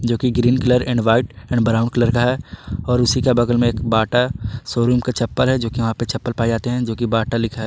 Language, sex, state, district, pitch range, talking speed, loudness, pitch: Hindi, male, Jharkhand, Ranchi, 115-125 Hz, 265 wpm, -18 LUFS, 120 Hz